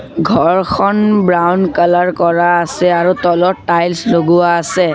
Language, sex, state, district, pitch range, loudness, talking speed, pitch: Assamese, male, Assam, Sonitpur, 170-185 Hz, -12 LUFS, 120 wpm, 175 Hz